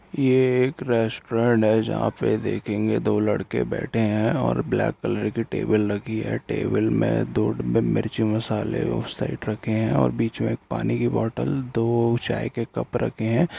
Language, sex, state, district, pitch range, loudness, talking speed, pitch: Hindi, male, Bihar, Jamui, 110-120 Hz, -23 LUFS, 175 wpm, 115 Hz